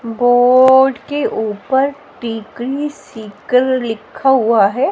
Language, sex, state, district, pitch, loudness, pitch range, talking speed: Hindi, female, Haryana, Jhajjar, 250 Hz, -14 LUFS, 225-270 Hz, 95 wpm